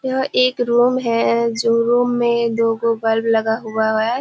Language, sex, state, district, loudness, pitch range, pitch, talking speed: Hindi, female, Bihar, Kishanganj, -17 LUFS, 225-245 Hz, 230 Hz, 185 wpm